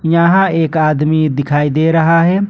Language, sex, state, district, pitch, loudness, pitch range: Hindi, male, Jharkhand, Ranchi, 160 Hz, -12 LUFS, 155-170 Hz